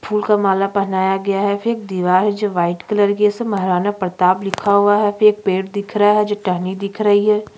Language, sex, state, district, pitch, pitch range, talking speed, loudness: Hindi, female, Chhattisgarh, Sukma, 200 Hz, 190-210 Hz, 255 wpm, -17 LUFS